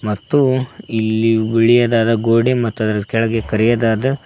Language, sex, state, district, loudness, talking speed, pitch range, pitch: Kannada, male, Karnataka, Koppal, -16 LUFS, 125 wpm, 110-120 Hz, 115 Hz